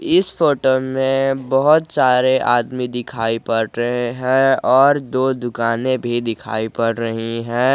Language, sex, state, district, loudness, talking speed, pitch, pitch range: Hindi, male, Jharkhand, Garhwa, -18 LUFS, 140 wpm, 125 Hz, 115-135 Hz